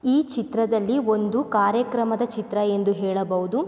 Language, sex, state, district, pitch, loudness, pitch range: Kannada, female, Karnataka, Mysore, 225 Hz, -23 LUFS, 205-245 Hz